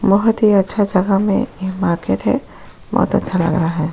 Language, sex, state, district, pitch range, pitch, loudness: Hindi, female, Goa, North and South Goa, 170-200 Hz, 190 Hz, -17 LUFS